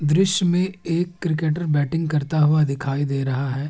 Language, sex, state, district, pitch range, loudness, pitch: Hindi, male, Uttar Pradesh, Hamirpur, 145-170 Hz, -21 LUFS, 155 Hz